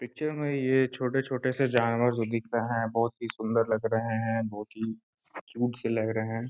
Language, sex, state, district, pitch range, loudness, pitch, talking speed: Hindi, male, Uttar Pradesh, Gorakhpur, 115-125 Hz, -29 LUFS, 115 Hz, 210 wpm